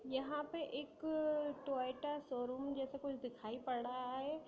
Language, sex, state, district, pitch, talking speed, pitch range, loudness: Hindi, female, Bihar, Sitamarhi, 275 Hz, 145 wpm, 255-295 Hz, -43 LUFS